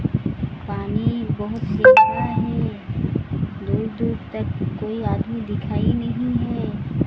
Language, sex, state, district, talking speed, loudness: Hindi, female, Odisha, Sambalpur, 110 wpm, -21 LUFS